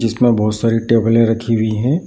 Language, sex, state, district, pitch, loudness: Hindi, male, Bihar, Darbhanga, 115 Hz, -15 LUFS